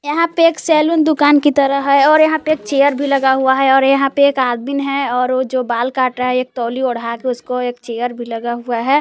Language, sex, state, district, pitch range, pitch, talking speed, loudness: Hindi, female, Jharkhand, Palamu, 250-285 Hz, 270 Hz, 265 wpm, -15 LUFS